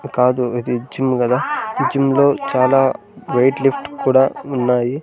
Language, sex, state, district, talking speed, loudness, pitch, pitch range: Telugu, male, Andhra Pradesh, Sri Satya Sai, 145 wpm, -17 LUFS, 130 Hz, 125-135 Hz